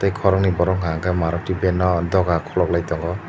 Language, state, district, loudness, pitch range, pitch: Kokborok, Tripura, Dhalai, -20 LUFS, 85-95 Hz, 90 Hz